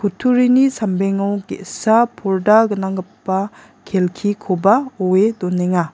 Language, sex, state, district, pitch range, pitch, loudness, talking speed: Garo, female, Meghalaya, West Garo Hills, 190-220 Hz, 200 Hz, -17 LUFS, 80 wpm